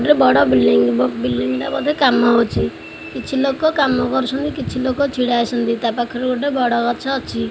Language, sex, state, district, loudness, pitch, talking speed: Odia, female, Odisha, Khordha, -17 LUFS, 245 Hz, 170 wpm